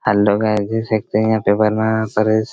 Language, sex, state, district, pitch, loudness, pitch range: Hindi, male, Chhattisgarh, Raigarh, 110 Hz, -17 LUFS, 105-110 Hz